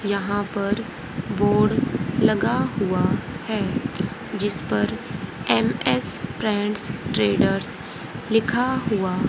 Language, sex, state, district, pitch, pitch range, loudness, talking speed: Hindi, female, Haryana, Rohtak, 210 Hz, 200-225 Hz, -22 LUFS, 75 wpm